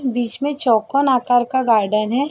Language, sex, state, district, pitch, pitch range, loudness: Hindi, female, Uttar Pradesh, Varanasi, 245 Hz, 230-275 Hz, -18 LUFS